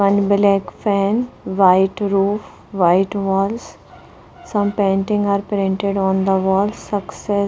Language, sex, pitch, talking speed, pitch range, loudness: English, female, 200 Hz, 130 wpm, 195-205 Hz, -18 LUFS